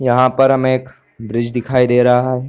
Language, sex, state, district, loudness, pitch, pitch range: Hindi, male, Chhattisgarh, Bilaspur, -15 LUFS, 125 Hz, 120-130 Hz